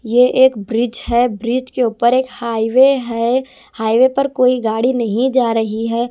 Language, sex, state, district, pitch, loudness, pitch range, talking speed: Hindi, female, Punjab, Kapurthala, 245 Hz, -15 LUFS, 230-255 Hz, 175 wpm